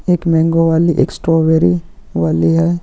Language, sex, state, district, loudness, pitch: Hindi, male, Chhattisgarh, Kabirdham, -14 LUFS, 160 Hz